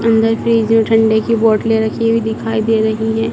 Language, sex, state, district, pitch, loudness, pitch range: Hindi, male, Madhya Pradesh, Dhar, 225 Hz, -14 LUFS, 220-225 Hz